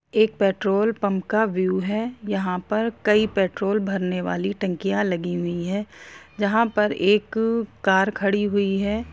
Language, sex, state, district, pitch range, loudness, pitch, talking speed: Hindi, female, Jharkhand, Jamtara, 190-215 Hz, -23 LUFS, 200 Hz, 150 wpm